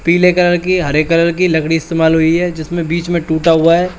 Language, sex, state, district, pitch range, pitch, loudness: Hindi, male, Uttar Pradesh, Shamli, 160-175 Hz, 170 Hz, -13 LUFS